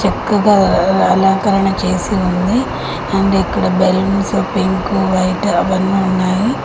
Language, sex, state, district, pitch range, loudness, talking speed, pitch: Telugu, female, Telangana, Mahabubabad, 185-195 Hz, -14 LUFS, 100 wpm, 195 Hz